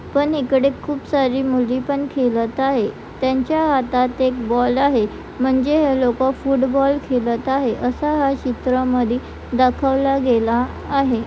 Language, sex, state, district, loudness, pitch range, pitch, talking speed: Marathi, female, Maharashtra, Chandrapur, -19 LUFS, 250-275 Hz, 265 Hz, 135 wpm